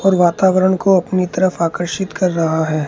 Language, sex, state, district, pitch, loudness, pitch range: Hindi, male, Rajasthan, Bikaner, 180 Hz, -16 LUFS, 170-190 Hz